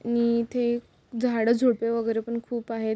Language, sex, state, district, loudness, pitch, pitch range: Marathi, female, Maharashtra, Solapur, -26 LUFS, 235 Hz, 230-240 Hz